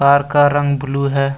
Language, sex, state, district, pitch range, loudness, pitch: Hindi, male, Jharkhand, Deoghar, 140-145 Hz, -15 LUFS, 140 Hz